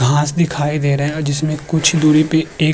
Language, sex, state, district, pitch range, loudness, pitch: Hindi, male, Uttar Pradesh, Muzaffarnagar, 145-160 Hz, -16 LUFS, 155 Hz